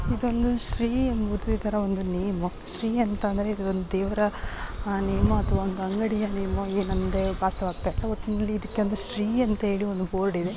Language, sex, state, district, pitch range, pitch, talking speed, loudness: Kannada, female, Karnataka, Gulbarga, 190-215 Hz, 205 Hz, 120 wpm, -23 LUFS